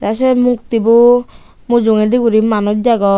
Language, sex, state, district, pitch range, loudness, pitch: Chakma, female, Tripura, Unakoti, 215-245 Hz, -12 LUFS, 230 Hz